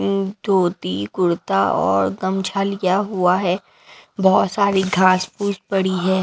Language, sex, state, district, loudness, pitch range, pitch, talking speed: Hindi, female, Maharashtra, Mumbai Suburban, -19 LUFS, 180-195 Hz, 190 Hz, 135 wpm